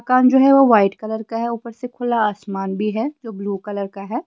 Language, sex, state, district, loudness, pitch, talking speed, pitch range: Hindi, female, Himachal Pradesh, Shimla, -19 LUFS, 225 Hz, 240 wpm, 205-245 Hz